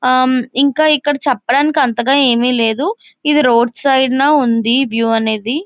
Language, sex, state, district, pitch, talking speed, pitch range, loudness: Telugu, female, Andhra Pradesh, Visakhapatnam, 260 Hz, 150 wpm, 235-290 Hz, -13 LUFS